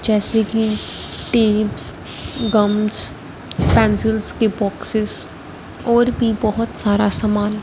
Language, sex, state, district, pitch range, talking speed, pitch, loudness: Hindi, female, Punjab, Fazilka, 210-225 Hz, 95 wpm, 215 Hz, -17 LUFS